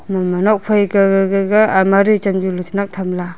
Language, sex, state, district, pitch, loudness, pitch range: Wancho, female, Arunachal Pradesh, Longding, 195 Hz, -15 LUFS, 185-200 Hz